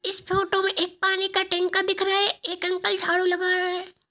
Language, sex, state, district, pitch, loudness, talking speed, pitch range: Hindi, male, Bihar, Sitamarhi, 380 Hz, -23 LUFS, 245 wpm, 360-390 Hz